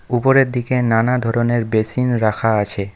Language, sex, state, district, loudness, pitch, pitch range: Bengali, male, West Bengal, Alipurduar, -17 LUFS, 120 Hz, 110-125 Hz